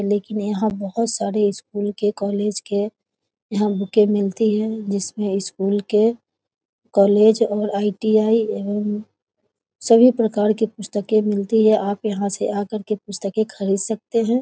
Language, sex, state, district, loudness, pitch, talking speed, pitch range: Maithili, female, Bihar, Muzaffarpur, -20 LUFS, 210 Hz, 150 wpm, 200-220 Hz